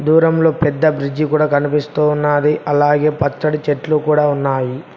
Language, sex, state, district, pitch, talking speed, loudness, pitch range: Telugu, male, Telangana, Mahabubabad, 150 Hz, 135 wpm, -15 LUFS, 145-155 Hz